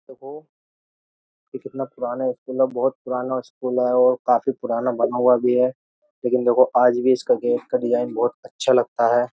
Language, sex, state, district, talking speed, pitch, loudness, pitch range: Hindi, male, Uttar Pradesh, Jyotiba Phule Nagar, 185 wpm, 125 Hz, -21 LUFS, 125-130 Hz